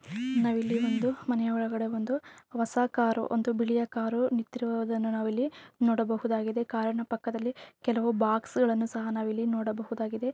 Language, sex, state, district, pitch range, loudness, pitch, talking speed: Kannada, female, Karnataka, Raichur, 225-240 Hz, -30 LUFS, 230 Hz, 130 wpm